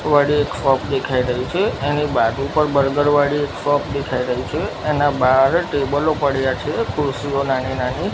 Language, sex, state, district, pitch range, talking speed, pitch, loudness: Gujarati, male, Gujarat, Gandhinagar, 130-145 Hz, 175 wpm, 140 Hz, -19 LUFS